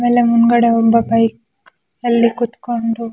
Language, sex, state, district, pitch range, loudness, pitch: Kannada, female, Karnataka, Shimoga, 230-240 Hz, -15 LUFS, 235 Hz